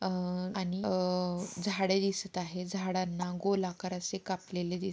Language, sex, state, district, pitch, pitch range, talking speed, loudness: Marathi, female, Maharashtra, Pune, 185 Hz, 180-190 Hz, 145 wpm, -34 LUFS